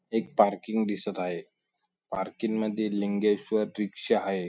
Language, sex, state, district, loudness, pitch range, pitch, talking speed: Marathi, male, Maharashtra, Sindhudurg, -29 LUFS, 100-110 Hz, 105 Hz, 120 wpm